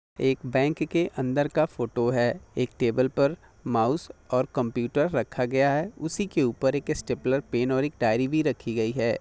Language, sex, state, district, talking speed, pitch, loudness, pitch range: Hindi, male, Bihar, Gopalganj, 165 wpm, 130 Hz, -26 LUFS, 125-145 Hz